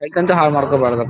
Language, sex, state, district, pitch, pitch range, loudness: Kannada, male, Karnataka, Dharwad, 140 Hz, 135-155 Hz, -15 LUFS